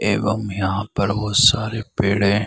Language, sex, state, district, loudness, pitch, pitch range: Hindi, male, Bihar, Saran, -19 LUFS, 105 Hz, 100-110 Hz